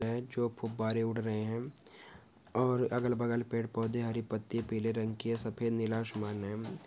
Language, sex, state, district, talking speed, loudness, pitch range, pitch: Hindi, male, West Bengal, Dakshin Dinajpur, 175 wpm, -35 LUFS, 110-120 Hz, 115 Hz